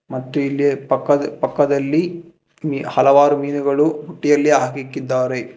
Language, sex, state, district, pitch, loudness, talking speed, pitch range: Kannada, male, Karnataka, Bangalore, 145 Hz, -18 LUFS, 95 wpm, 135-150 Hz